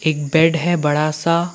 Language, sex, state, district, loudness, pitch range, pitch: Hindi, male, Arunachal Pradesh, Lower Dibang Valley, -17 LUFS, 155-170 Hz, 160 Hz